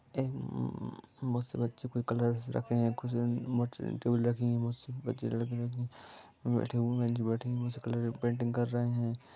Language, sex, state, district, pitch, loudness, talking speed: Hindi, male, Bihar, East Champaran, 120 Hz, -34 LUFS, 155 wpm